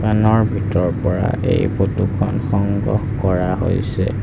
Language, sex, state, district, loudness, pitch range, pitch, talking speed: Assamese, male, Assam, Sonitpur, -18 LUFS, 95-110 Hz, 100 Hz, 100 wpm